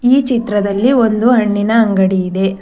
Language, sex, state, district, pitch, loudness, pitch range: Kannada, female, Karnataka, Bangalore, 215 Hz, -13 LUFS, 195-245 Hz